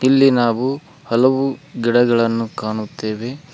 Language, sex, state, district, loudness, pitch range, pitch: Kannada, male, Karnataka, Koppal, -18 LUFS, 115-135 Hz, 120 Hz